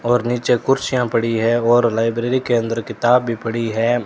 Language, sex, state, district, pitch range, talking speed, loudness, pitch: Hindi, male, Rajasthan, Bikaner, 115-120 Hz, 190 wpm, -18 LUFS, 120 Hz